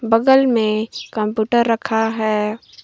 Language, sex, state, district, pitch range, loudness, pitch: Hindi, female, Jharkhand, Garhwa, 215-235 Hz, -18 LUFS, 225 Hz